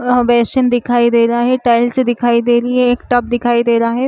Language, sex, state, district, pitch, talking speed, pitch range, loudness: Chhattisgarhi, female, Chhattisgarh, Rajnandgaon, 240 Hz, 250 wpm, 235-245 Hz, -13 LUFS